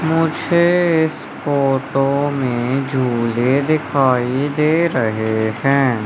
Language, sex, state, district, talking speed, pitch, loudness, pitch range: Hindi, male, Madhya Pradesh, Umaria, 90 wpm, 135 Hz, -17 LUFS, 125-155 Hz